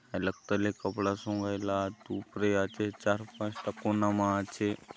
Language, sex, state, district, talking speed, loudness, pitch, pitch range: Halbi, male, Chhattisgarh, Bastar, 180 wpm, -32 LUFS, 100 Hz, 100-105 Hz